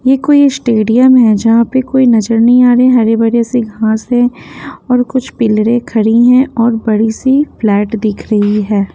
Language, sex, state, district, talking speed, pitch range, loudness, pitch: Hindi, female, Haryana, Jhajjar, 185 wpm, 220-250 Hz, -10 LUFS, 235 Hz